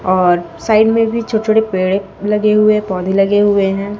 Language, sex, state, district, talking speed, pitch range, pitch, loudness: Hindi, female, Chhattisgarh, Raipur, 210 wpm, 190-215 Hz, 205 Hz, -14 LUFS